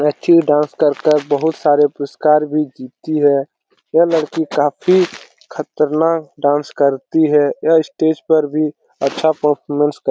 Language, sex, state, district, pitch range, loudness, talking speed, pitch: Hindi, male, Bihar, Lakhisarai, 145-160 Hz, -15 LUFS, 150 wpm, 150 Hz